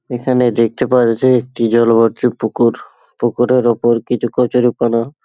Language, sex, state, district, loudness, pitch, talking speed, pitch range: Bengali, male, West Bengal, Paschim Medinipur, -14 LUFS, 120 Hz, 125 wpm, 115-125 Hz